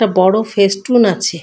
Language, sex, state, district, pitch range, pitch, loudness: Bengali, female, West Bengal, Malda, 185-220 Hz, 200 Hz, -13 LUFS